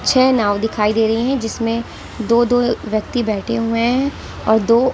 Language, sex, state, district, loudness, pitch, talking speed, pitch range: Hindi, female, Delhi, New Delhi, -17 LUFS, 230 Hz, 170 wpm, 220-245 Hz